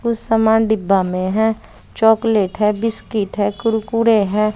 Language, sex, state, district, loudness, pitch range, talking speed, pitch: Hindi, female, Bihar, West Champaran, -17 LUFS, 205-225 Hz, 145 wpm, 220 Hz